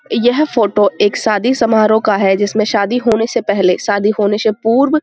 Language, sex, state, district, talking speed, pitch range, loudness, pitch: Hindi, female, Uttar Pradesh, Budaun, 205 wpm, 205-230 Hz, -13 LUFS, 220 Hz